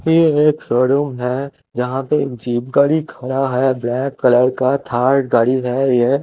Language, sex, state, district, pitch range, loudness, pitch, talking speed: Hindi, male, Chandigarh, Chandigarh, 125-140 Hz, -17 LUFS, 130 Hz, 185 wpm